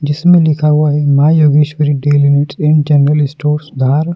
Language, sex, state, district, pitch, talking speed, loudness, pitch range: Hindi, male, Madhya Pradesh, Dhar, 150 Hz, 175 wpm, -11 LUFS, 145-150 Hz